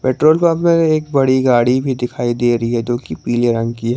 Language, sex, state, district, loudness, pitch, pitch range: Hindi, male, Jharkhand, Garhwa, -15 LUFS, 125 Hz, 120-140 Hz